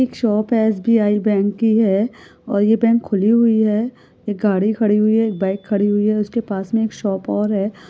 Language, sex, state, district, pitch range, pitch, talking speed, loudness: Hindi, female, Karnataka, Bijapur, 205-225 Hz, 215 Hz, 235 wpm, -18 LUFS